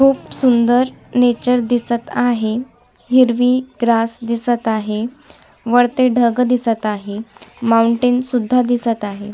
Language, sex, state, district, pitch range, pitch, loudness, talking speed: Marathi, female, Maharashtra, Sindhudurg, 230-250 Hz, 240 Hz, -16 LUFS, 110 wpm